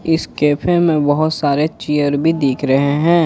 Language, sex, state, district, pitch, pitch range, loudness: Hindi, male, Jharkhand, Ranchi, 150 Hz, 145-160 Hz, -15 LUFS